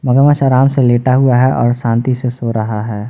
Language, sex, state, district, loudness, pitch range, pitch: Hindi, male, Jharkhand, Ranchi, -13 LUFS, 115-130 Hz, 125 Hz